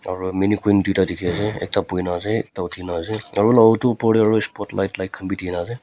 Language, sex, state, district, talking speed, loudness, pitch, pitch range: Nagamese, female, Nagaland, Kohima, 300 wpm, -20 LUFS, 100 Hz, 90-110 Hz